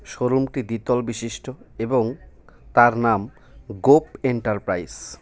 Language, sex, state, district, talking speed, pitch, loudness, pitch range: Bengali, male, West Bengal, Cooch Behar, 105 wpm, 120 Hz, -21 LUFS, 110-130 Hz